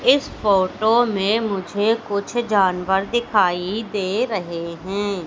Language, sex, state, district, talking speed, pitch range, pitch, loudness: Hindi, female, Madhya Pradesh, Katni, 115 wpm, 190-220 Hz, 200 Hz, -20 LUFS